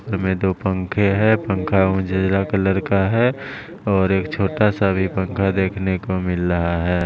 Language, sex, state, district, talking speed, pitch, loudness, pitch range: Hindi, male, Maharashtra, Mumbai Suburban, 170 wpm, 95 Hz, -19 LUFS, 95-100 Hz